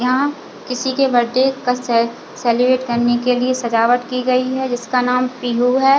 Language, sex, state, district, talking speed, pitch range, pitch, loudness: Hindi, female, Chhattisgarh, Bilaspur, 180 wpm, 240-255 Hz, 250 Hz, -17 LUFS